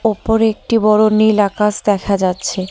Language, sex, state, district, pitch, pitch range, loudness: Bengali, female, West Bengal, Cooch Behar, 210 Hz, 195-215 Hz, -14 LUFS